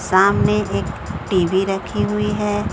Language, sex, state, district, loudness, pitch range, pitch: Hindi, female, Odisha, Sambalpur, -19 LUFS, 190-210 Hz, 200 Hz